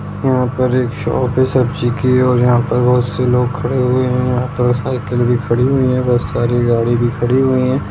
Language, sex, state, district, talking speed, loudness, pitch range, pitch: Hindi, male, Bihar, Jamui, 230 wpm, -15 LUFS, 120-130 Hz, 125 Hz